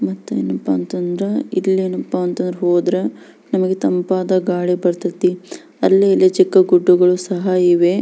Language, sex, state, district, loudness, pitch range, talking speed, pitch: Kannada, female, Karnataka, Belgaum, -16 LUFS, 180-190 Hz, 120 wpm, 180 Hz